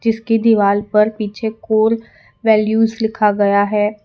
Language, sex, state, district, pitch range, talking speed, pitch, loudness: Hindi, female, Gujarat, Valsad, 210-225 Hz, 135 wpm, 220 Hz, -16 LUFS